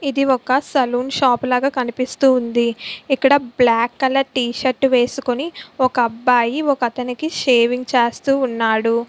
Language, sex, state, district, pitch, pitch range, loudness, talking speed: Telugu, female, Andhra Pradesh, Visakhapatnam, 255 Hz, 240-270 Hz, -18 LUFS, 125 wpm